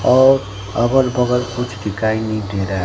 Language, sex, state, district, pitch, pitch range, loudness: Hindi, male, Bihar, Katihar, 110 Hz, 105-125 Hz, -17 LUFS